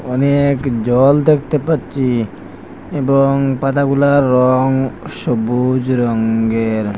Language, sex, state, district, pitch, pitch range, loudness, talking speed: Bengali, male, Assam, Hailakandi, 130 Hz, 120-140 Hz, -15 LUFS, 75 wpm